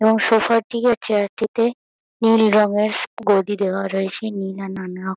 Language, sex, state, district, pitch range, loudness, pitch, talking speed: Bengali, female, West Bengal, Kolkata, 195-225 Hz, -19 LUFS, 210 Hz, 160 wpm